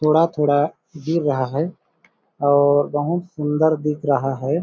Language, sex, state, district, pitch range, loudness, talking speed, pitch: Hindi, male, Chhattisgarh, Balrampur, 145-160 Hz, -20 LUFS, 145 wpm, 150 Hz